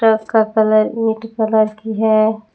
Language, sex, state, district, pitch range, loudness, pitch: Hindi, female, Jharkhand, Palamu, 215-220 Hz, -16 LUFS, 220 Hz